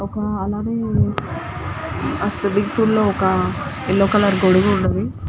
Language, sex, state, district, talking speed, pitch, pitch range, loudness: Telugu, female, Andhra Pradesh, Guntur, 115 wpm, 200 Hz, 185-210 Hz, -19 LUFS